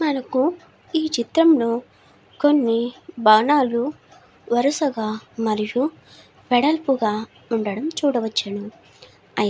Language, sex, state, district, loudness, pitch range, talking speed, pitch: Telugu, female, Andhra Pradesh, Srikakulam, -21 LUFS, 220-295 Hz, 75 wpm, 245 Hz